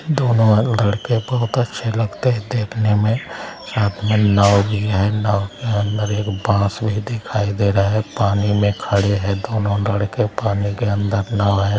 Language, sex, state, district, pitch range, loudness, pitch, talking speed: Hindi, male, Bihar, Araria, 100-110 Hz, -18 LUFS, 105 Hz, 175 wpm